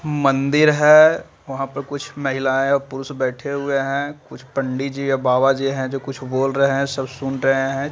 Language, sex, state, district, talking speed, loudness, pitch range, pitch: Hindi, male, Bihar, Gaya, 210 wpm, -19 LUFS, 135-140 Hz, 135 Hz